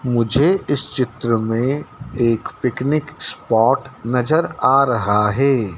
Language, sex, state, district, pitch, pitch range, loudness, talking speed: Hindi, male, Madhya Pradesh, Dhar, 125 Hz, 115-145 Hz, -18 LUFS, 115 wpm